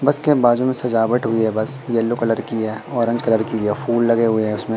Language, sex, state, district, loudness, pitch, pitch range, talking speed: Hindi, male, Madhya Pradesh, Katni, -18 LUFS, 115 Hz, 110-120 Hz, 265 wpm